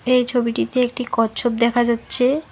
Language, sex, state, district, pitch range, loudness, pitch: Bengali, female, West Bengal, Alipurduar, 235-250 Hz, -18 LUFS, 245 Hz